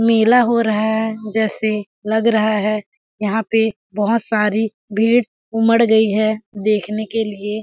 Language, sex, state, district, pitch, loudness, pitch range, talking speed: Hindi, female, Chhattisgarh, Balrampur, 220 Hz, -17 LUFS, 210-225 Hz, 150 wpm